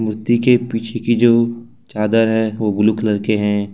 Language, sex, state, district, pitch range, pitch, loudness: Hindi, male, Jharkhand, Ranchi, 105-115 Hz, 110 Hz, -16 LUFS